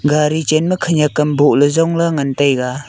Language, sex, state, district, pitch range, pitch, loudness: Wancho, male, Arunachal Pradesh, Longding, 145-160 Hz, 150 Hz, -14 LUFS